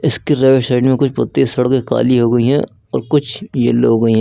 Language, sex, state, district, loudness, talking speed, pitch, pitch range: Hindi, male, Uttar Pradesh, Lucknow, -14 LUFS, 240 wpm, 130 Hz, 120-135 Hz